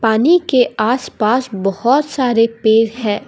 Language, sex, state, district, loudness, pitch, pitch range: Hindi, female, Assam, Kamrup Metropolitan, -15 LUFS, 230 Hz, 220-255 Hz